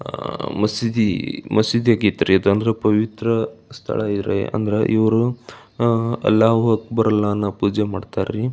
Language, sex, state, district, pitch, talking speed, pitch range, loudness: Kannada, male, Karnataka, Belgaum, 110 Hz, 105 wpm, 105-115 Hz, -19 LUFS